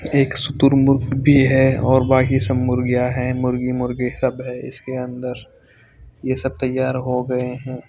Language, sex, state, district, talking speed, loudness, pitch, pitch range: Hindi, male, Punjab, Fazilka, 160 wpm, -19 LUFS, 130 Hz, 125-130 Hz